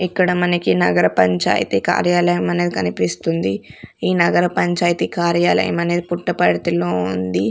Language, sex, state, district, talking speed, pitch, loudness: Telugu, female, Andhra Pradesh, Sri Satya Sai, 120 wpm, 125 Hz, -17 LUFS